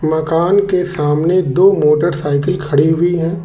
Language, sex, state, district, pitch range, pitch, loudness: Hindi, male, Uttar Pradesh, Lalitpur, 150-180 Hz, 165 Hz, -14 LUFS